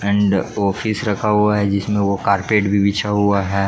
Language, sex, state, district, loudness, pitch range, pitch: Hindi, male, Jharkhand, Jamtara, -17 LUFS, 100-105 Hz, 100 Hz